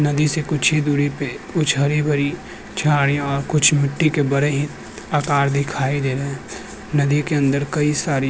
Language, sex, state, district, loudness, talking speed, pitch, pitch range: Hindi, male, Uttar Pradesh, Jyotiba Phule Nagar, -19 LUFS, 190 wpm, 145 Hz, 140-150 Hz